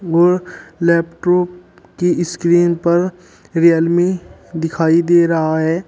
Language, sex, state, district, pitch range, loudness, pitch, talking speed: Hindi, male, Uttar Pradesh, Shamli, 165-180 Hz, -15 LUFS, 170 Hz, 100 wpm